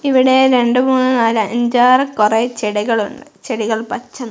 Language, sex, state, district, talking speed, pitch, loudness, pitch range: Malayalam, female, Kerala, Kozhikode, 155 wpm, 245 Hz, -14 LUFS, 225-260 Hz